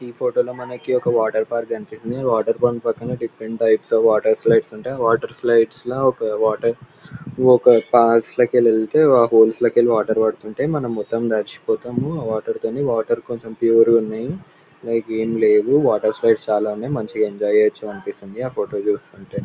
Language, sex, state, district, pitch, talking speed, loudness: Telugu, male, Andhra Pradesh, Anantapur, 120 Hz, 165 wpm, -18 LUFS